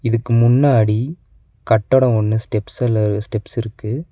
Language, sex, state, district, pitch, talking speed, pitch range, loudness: Tamil, male, Tamil Nadu, Nilgiris, 115 Hz, 100 wpm, 110-125 Hz, -17 LUFS